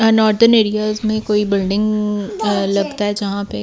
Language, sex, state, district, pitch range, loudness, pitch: Hindi, female, Delhi, New Delhi, 200-215 Hz, -16 LUFS, 210 Hz